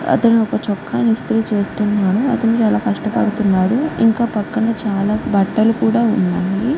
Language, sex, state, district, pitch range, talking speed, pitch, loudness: Telugu, female, Andhra Pradesh, Guntur, 195-230 Hz, 135 wpm, 215 Hz, -16 LUFS